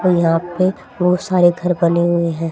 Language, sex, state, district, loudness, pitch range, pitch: Hindi, female, Haryana, Charkhi Dadri, -16 LUFS, 170-180 Hz, 175 Hz